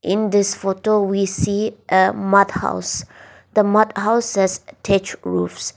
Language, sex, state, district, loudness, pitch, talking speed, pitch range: English, female, Nagaland, Dimapur, -19 LUFS, 195 Hz, 145 wpm, 190-210 Hz